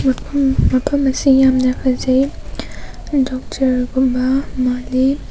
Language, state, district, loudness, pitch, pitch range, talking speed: Manipuri, Manipur, Imphal West, -16 LUFS, 260 Hz, 255-270 Hz, 90 wpm